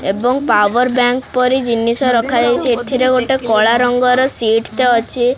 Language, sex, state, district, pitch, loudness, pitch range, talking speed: Odia, male, Odisha, Khordha, 245 Hz, -13 LUFS, 235-255 Hz, 165 wpm